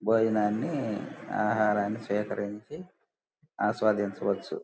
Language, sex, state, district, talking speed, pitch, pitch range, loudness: Telugu, male, Andhra Pradesh, Guntur, 50 wpm, 105 Hz, 105-110 Hz, -29 LUFS